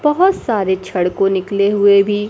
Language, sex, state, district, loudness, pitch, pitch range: Hindi, female, Bihar, Kaimur, -15 LUFS, 200 Hz, 195-210 Hz